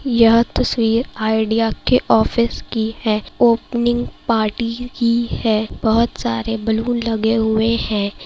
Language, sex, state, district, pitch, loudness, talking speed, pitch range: Hindi, female, Bihar, Saharsa, 225 Hz, -18 LUFS, 125 wpm, 220-235 Hz